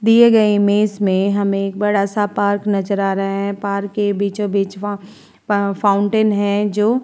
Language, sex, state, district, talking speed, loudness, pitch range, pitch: Hindi, female, Uttar Pradesh, Jalaun, 180 wpm, -17 LUFS, 200-210 Hz, 205 Hz